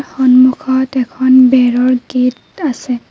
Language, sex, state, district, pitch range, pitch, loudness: Assamese, female, Assam, Kamrup Metropolitan, 250-260 Hz, 255 Hz, -12 LUFS